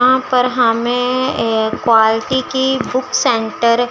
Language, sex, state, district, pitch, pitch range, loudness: Hindi, female, Chandigarh, Chandigarh, 250 Hz, 230-255 Hz, -15 LUFS